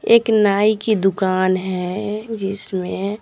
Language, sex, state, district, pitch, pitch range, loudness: Hindi, female, Bihar, Patna, 200 Hz, 185-215 Hz, -19 LUFS